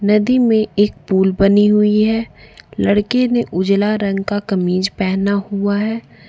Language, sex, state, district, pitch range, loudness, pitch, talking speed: Hindi, female, Jharkhand, Ranchi, 195-215 Hz, -16 LUFS, 205 Hz, 145 wpm